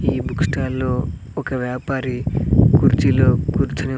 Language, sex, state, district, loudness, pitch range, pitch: Telugu, male, Andhra Pradesh, Sri Satya Sai, -19 LUFS, 125-135 Hz, 130 Hz